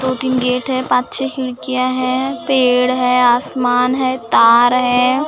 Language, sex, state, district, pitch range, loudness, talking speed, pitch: Hindi, male, Maharashtra, Gondia, 250-260 Hz, -15 LUFS, 160 wpm, 255 Hz